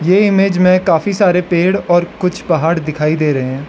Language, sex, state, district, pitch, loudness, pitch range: Hindi, male, Arunachal Pradesh, Lower Dibang Valley, 175 Hz, -13 LUFS, 160-190 Hz